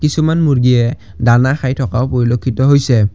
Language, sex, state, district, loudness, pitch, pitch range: Assamese, male, Assam, Kamrup Metropolitan, -13 LUFS, 125 Hz, 120-140 Hz